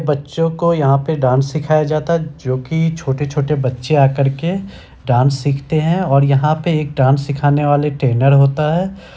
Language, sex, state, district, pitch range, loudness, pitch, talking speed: Hindi, male, Bihar, Samastipur, 135-160 Hz, -15 LUFS, 145 Hz, 175 wpm